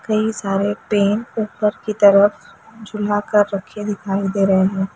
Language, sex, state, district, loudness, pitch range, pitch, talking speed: Hindi, female, Bihar, Gaya, -18 LUFS, 200-215 Hz, 205 Hz, 155 wpm